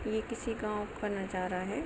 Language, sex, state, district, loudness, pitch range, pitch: Hindi, female, Jharkhand, Sahebganj, -36 LUFS, 195-225 Hz, 210 Hz